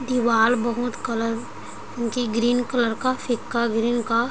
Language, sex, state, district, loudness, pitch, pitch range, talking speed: Hindi, female, Chhattisgarh, Bilaspur, -23 LUFS, 235 Hz, 230-245 Hz, 140 wpm